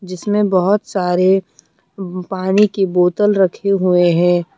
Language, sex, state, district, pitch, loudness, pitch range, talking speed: Hindi, female, Jharkhand, Deoghar, 190 Hz, -15 LUFS, 180-200 Hz, 120 wpm